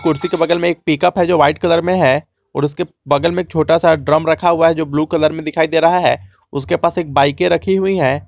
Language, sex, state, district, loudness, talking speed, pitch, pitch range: Hindi, male, Jharkhand, Garhwa, -15 LUFS, 270 wpm, 165 Hz, 155-175 Hz